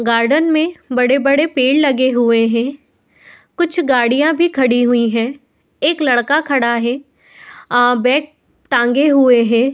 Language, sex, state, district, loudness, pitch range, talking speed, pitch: Hindi, female, Uttar Pradesh, Etah, -14 LUFS, 240-290 Hz, 135 wpm, 260 Hz